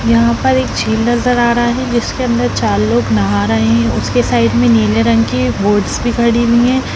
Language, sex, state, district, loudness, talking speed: Hindi, female, Bihar, Darbhanga, -13 LUFS, 215 wpm